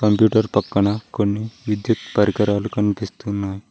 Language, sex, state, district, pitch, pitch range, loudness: Telugu, male, Telangana, Mahabubabad, 105 Hz, 100-110 Hz, -20 LUFS